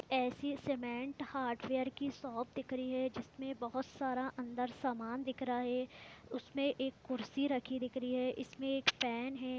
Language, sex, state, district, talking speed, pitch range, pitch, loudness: Hindi, female, Jharkhand, Sahebganj, 170 wpm, 250-270 Hz, 260 Hz, -39 LUFS